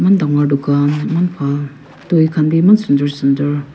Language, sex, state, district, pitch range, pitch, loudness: Nagamese, female, Nagaland, Kohima, 140-165 Hz, 145 Hz, -14 LUFS